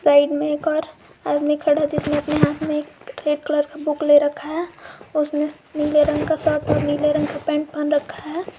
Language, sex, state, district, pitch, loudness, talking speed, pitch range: Hindi, female, Jharkhand, Garhwa, 300 Hz, -21 LUFS, 215 wpm, 295-305 Hz